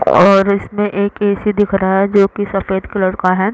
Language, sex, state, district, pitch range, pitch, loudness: Hindi, female, Chhattisgarh, Raigarh, 195-205 Hz, 200 Hz, -14 LUFS